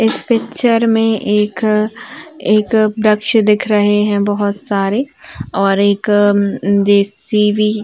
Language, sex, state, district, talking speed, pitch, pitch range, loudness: Hindi, female, Uttar Pradesh, Varanasi, 115 wpm, 210 Hz, 205-225 Hz, -14 LUFS